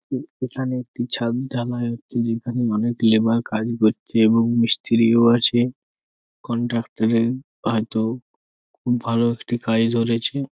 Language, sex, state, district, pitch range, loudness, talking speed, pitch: Bengali, male, West Bengal, Jhargram, 115-120 Hz, -21 LUFS, 115 wpm, 115 Hz